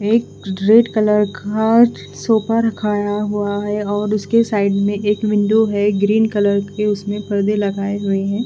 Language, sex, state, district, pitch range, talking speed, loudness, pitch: Hindi, female, Bihar, Katihar, 205-215 Hz, 165 wpm, -17 LUFS, 210 Hz